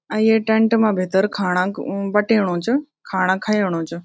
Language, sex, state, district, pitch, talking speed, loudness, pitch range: Garhwali, female, Uttarakhand, Tehri Garhwal, 205 Hz, 165 wpm, -19 LUFS, 185-220 Hz